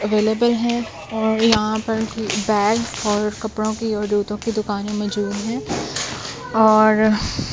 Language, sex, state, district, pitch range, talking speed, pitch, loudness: Hindi, female, Delhi, New Delhi, 210-220 Hz, 135 wpm, 215 Hz, -20 LUFS